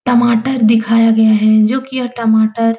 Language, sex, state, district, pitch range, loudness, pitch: Hindi, female, Uttar Pradesh, Etah, 220-245 Hz, -12 LUFS, 230 Hz